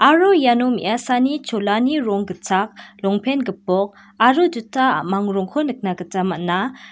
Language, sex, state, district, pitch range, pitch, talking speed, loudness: Garo, female, Meghalaya, West Garo Hills, 195-260 Hz, 215 Hz, 130 wpm, -19 LUFS